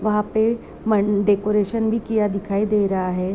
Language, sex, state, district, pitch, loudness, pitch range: Hindi, female, Uttar Pradesh, Deoria, 210 Hz, -21 LUFS, 200-220 Hz